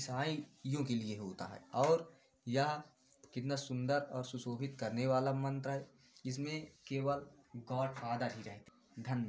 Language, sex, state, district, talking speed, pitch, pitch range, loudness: Hindi, male, Uttar Pradesh, Varanasi, 150 wpm, 135 Hz, 125-140 Hz, -39 LUFS